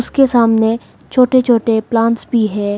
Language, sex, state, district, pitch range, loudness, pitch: Hindi, female, Arunachal Pradesh, Lower Dibang Valley, 225-245 Hz, -14 LUFS, 230 Hz